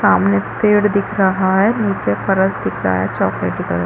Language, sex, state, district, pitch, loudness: Hindi, female, Chhattisgarh, Rajnandgaon, 190 Hz, -16 LUFS